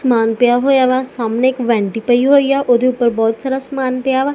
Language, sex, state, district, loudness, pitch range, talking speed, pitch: Punjabi, female, Punjab, Kapurthala, -15 LUFS, 235-265 Hz, 235 wpm, 255 Hz